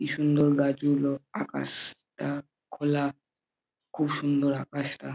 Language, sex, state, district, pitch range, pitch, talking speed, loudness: Bengali, male, West Bengal, Jhargram, 140-145 Hz, 140 Hz, 115 wpm, -28 LUFS